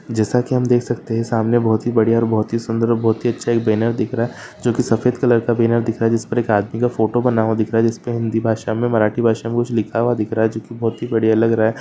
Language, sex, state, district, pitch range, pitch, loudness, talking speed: Hindi, male, Maharashtra, Solapur, 110-120 Hz, 115 Hz, -18 LUFS, 305 wpm